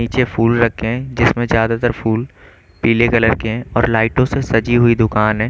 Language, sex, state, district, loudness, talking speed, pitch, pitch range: Hindi, male, Chandigarh, Chandigarh, -15 LUFS, 195 wpm, 115 Hz, 115-120 Hz